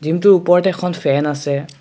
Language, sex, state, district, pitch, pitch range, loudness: Assamese, male, Assam, Kamrup Metropolitan, 165 Hz, 145-180 Hz, -15 LUFS